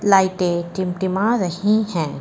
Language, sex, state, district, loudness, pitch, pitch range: Hindi, female, Uttar Pradesh, Lucknow, -20 LUFS, 190 Hz, 175-200 Hz